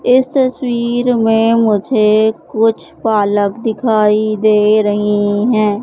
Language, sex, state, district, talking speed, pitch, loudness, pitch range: Hindi, female, Madhya Pradesh, Katni, 105 wpm, 220 Hz, -13 LUFS, 210-235 Hz